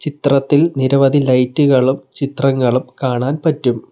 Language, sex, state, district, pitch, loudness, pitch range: Malayalam, male, Kerala, Kollam, 135 Hz, -15 LUFS, 130-145 Hz